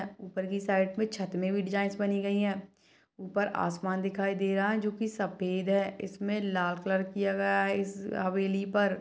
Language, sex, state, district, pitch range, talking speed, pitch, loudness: Hindi, female, Chhattisgarh, Balrampur, 190-200 Hz, 200 wpm, 195 Hz, -31 LUFS